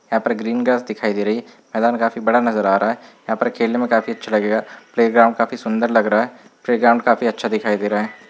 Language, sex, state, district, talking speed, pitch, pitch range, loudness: Hindi, male, Uttar Pradesh, Gorakhpur, 260 wpm, 115 Hz, 110-120 Hz, -18 LUFS